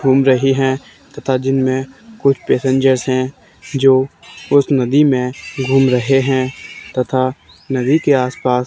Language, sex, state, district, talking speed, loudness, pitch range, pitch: Hindi, male, Haryana, Charkhi Dadri, 150 wpm, -15 LUFS, 130-135 Hz, 130 Hz